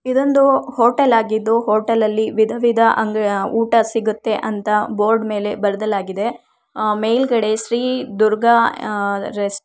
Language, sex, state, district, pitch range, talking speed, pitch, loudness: Kannada, female, Karnataka, Shimoga, 210-235 Hz, 110 wpm, 220 Hz, -17 LUFS